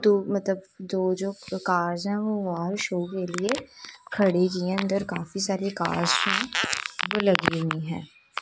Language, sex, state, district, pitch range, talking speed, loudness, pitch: Hindi, female, Punjab, Kapurthala, 180-195 Hz, 170 wpm, -26 LUFS, 190 Hz